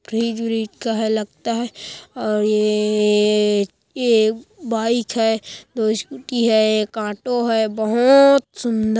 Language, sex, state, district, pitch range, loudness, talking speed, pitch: Hindi, female, Chhattisgarh, Kabirdham, 210-235 Hz, -19 LUFS, 135 wpm, 220 Hz